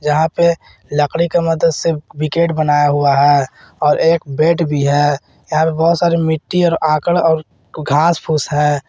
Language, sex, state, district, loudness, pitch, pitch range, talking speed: Hindi, male, Jharkhand, Garhwa, -15 LUFS, 155 Hz, 145-165 Hz, 175 wpm